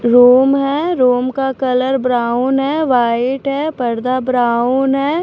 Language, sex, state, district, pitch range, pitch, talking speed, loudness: Hindi, female, Maharashtra, Washim, 245-275 Hz, 255 Hz, 140 wpm, -14 LUFS